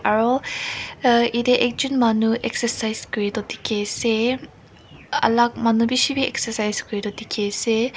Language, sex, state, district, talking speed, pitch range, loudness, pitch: Nagamese, female, Nagaland, Kohima, 150 wpm, 220-245 Hz, -21 LUFS, 235 Hz